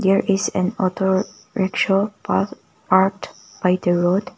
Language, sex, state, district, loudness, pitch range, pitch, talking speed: English, female, Nagaland, Kohima, -20 LUFS, 185-195 Hz, 190 Hz, 125 wpm